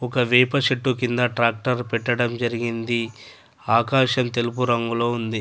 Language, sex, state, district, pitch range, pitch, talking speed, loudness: Telugu, male, Telangana, Adilabad, 115-125 Hz, 120 Hz, 120 wpm, -21 LUFS